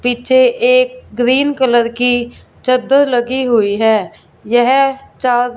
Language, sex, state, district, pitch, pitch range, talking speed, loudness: Hindi, female, Punjab, Fazilka, 250 Hz, 240-270 Hz, 120 wpm, -13 LUFS